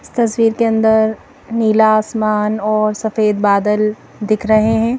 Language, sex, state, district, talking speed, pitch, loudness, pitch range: Hindi, female, Madhya Pradesh, Bhopal, 145 wpm, 215 Hz, -15 LUFS, 215-220 Hz